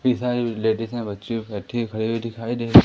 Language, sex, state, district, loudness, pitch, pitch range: Hindi, male, Madhya Pradesh, Umaria, -24 LUFS, 115 Hz, 110-120 Hz